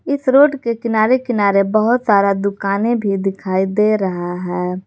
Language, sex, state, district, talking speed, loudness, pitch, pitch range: Hindi, female, Jharkhand, Garhwa, 160 wpm, -16 LUFS, 200 Hz, 195-235 Hz